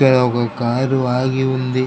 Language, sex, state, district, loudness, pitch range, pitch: Telugu, male, Andhra Pradesh, Krishna, -17 LUFS, 125-130 Hz, 130 Hz